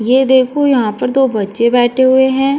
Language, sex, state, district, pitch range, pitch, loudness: Hindi, female, Uttar Pradesh, Jyotiba Phule Nagar, 240-265 Hz, 260 Hz, -12 LUFS